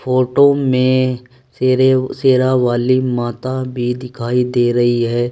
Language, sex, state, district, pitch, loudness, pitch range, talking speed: Hindi, male, Uttar Pradesh, Saharanpur, 125 Hz, -15 LUFS, 120-130 Hz, 115 wpm